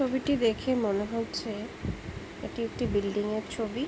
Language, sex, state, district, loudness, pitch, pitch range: Bengali, female, West Bengal, Jhargram, -31 LUFS, 230 Hz, 215-255 Hz